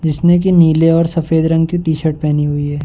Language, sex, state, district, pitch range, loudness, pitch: Hindi, male, Uttar Pradesh, Varanasi, 155-165 Hz, -13 LUFS, 160 Hz